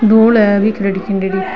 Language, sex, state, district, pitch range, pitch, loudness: Marwari, female, Rajasthan, Nagaur, 190-220 Hz, 205 Hz, -13 LUFS